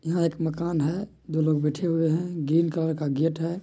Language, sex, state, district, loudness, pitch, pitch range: Maithili, male, Bihar, Madhepura, -26 LUFS, 165 Hz, 155-170 Hz